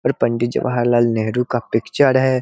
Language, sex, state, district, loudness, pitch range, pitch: Hindi, male, Bihar, Muzaffarpur, -18 LUFS, 115-125 Hz, 120 Hz